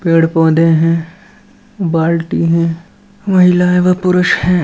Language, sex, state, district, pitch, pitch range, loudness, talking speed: Hindi, male, Uttar Pradesh, Etah, 175 Hz, 165-180 Hz, -12 LUFS, 130 wpm